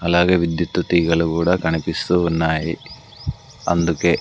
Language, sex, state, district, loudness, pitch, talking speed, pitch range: Telugu, male, Andhra Pradesh, Sri Satya Sai, -19 LUFS, 85 Hz, 100 wpm, 80-85 Hz